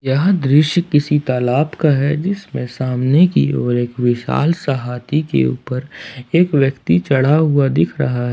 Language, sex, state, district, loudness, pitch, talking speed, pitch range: Hindi, male, Jharkhand, Ranchi, -16 LUFS, 135 Hz, 165 wpm, 125-155 Hz